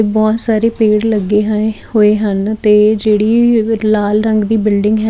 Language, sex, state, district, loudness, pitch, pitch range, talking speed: Punjabi, female, Chandigarh, Chandigarh, -12 LUFS, 215 Hz, 210-220 Hz, 165 wpm